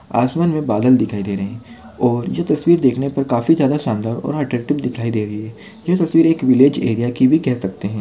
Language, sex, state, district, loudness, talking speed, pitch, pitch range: Hindi, male, Maharashtra, Sindhudurg, -17 LUFS, 225 wpm, 125 Hz, 115-150 Hz